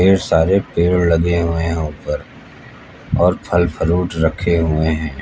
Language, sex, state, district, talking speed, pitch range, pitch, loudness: Hindi, male, Uttar Pradesh, Lucknow, 150 wpm, 80-90 Hz, 85 Hz, -17 LUFS